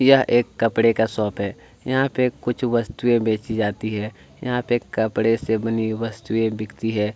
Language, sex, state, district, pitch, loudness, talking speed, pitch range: Hindi, male, Chhattisgarh, Kabirdham, 115 Hz, -22 LUFS, 170 wpm, 110-120 Hz